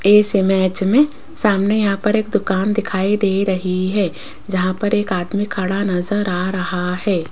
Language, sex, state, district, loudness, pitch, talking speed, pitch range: Hindi, female, Rajasthan, Jaipur, -18 LUFS, 195 Hz, 170 wpm, 185-210 Hz